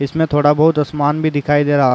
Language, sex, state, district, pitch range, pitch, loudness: Hindi, male, Uttar Pradesh, Jalaun, 145-155 Hz, 145 Hz, -15 LUFS